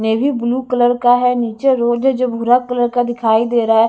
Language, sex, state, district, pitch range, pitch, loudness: Hindi, female, Chhattisgarh, Raipur, 235-250 Hz, 240 Hz, -15 LUFS